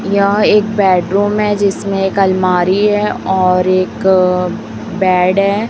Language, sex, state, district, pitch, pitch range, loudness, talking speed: Hindi, female, Chhattisgarh, Raipur, 195 Hz, 185-205 Hz, -13 LUFS, 135 wpm